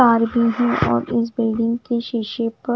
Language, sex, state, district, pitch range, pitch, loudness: Hindi, female, Punjab, Fazilka, 230-240 Hz, 230 Hz, -20 LUFS